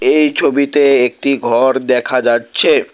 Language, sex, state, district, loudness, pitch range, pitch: Bengali, male, West Bengal, Alipurduar, -13 LUFS, 125-145 Hz, 135 Hz